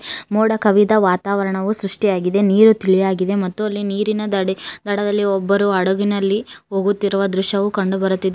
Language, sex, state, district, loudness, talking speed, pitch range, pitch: Kannada, female, Karnataka, Koppal, -17 LUFS, 120 wpm, 190-205 Hz, 200 Hz